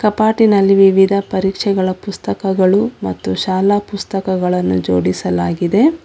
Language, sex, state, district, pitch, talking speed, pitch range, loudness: Kannada, female, Karnataka, Bangalore, 195 Hz, 80 wpm, 180-205 Hz, -15 LUFS